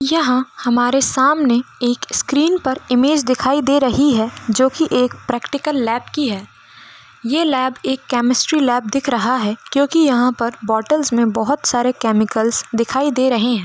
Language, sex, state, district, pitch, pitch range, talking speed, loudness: Hindi, female, Goa, North and South Goa, 255 Hz, 240-280 Hz, 170 wpm, -17 LUFS